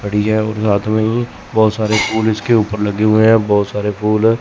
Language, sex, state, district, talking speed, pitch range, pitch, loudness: Hindi, male, Chandigarh, Chandigarh, 245 wpm, 105-110 Hz, 110 Hz, -15 LUFS